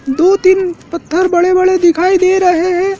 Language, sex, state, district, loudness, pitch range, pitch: Hindi, male, Madhya Pradesh, Dhar, -11 LUFS, 345-370 Hz, 365 Hz